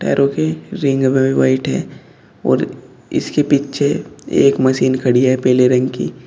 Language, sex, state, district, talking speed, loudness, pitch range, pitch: Hindi, male, Uttar Pradesh, Shamli, 165 wpm, -16 LUFS, 125-140 Hz, 135 Hz